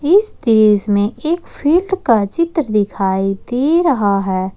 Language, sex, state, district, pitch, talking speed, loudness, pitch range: Hindi, female, Jharkhand, Ranchi, 225 Hz, 145 wpm, -15 LUFS, 200-330 Hz